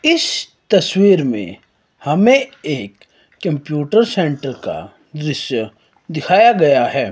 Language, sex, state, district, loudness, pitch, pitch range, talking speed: Hindi, male, Himachal Pradesh, Shimla, -16 LUFS, 180 Hz, 145-225 Hz, 100 wpm